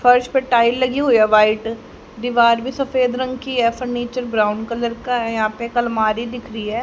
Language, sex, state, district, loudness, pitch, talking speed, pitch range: Hindi, female, Haryana, Jhajjar, -18 LUFS, 235 Hz, 220 wpm, 225-250 Hz